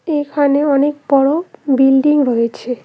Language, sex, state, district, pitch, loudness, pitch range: Bengali, female, West Bengal, Cooch Behar, 285 Hz, -14 LUFS, 265-295 Hz